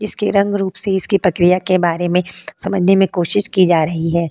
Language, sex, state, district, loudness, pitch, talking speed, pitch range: Hindi, female, Uttar Pradesh, Jalaun, -16 LUFS, 185 Hz, 220 wpm, 175-200 Hz